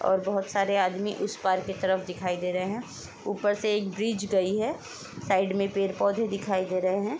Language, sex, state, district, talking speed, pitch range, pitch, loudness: Hindi, female, Uttar Pradesh, Etah, 215 wpm, 190-205 Hz, 195 Hz, -28 LUFS